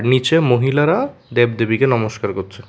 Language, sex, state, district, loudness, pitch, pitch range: Bengali, male, Tripura, West Tripura, -17 LUFS, 125 Hz, 115-135 Hz